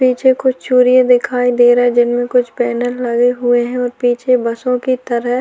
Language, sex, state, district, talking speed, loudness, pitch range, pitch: Hindi, female, Chhattisgarh, Korba, 210 wpm, -14 LUFS, 240-250 Hz, 245 Hz